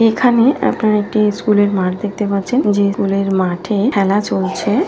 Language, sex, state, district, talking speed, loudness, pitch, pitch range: Bengali, female, West Bengal, Kolkata, 145 wpm, -15 LUFS, 205 Hz, 195-215 Hz